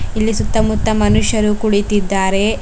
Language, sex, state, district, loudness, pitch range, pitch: Kannada, female, Karnataka, Bidar, -15 LUFS, 190-215 Hz, 205 Hz